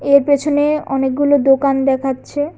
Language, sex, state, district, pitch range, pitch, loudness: Bengali, female, Tripura, West Tripura, 270-290 Hz, 280 Hz, -15 LUFS